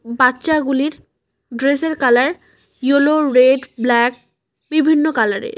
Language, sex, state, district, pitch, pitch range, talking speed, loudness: Bengali, female, West Bengal, Cooch Behar, 275 Hz, 250-310 Hz, 120 wpm, -16 LUFS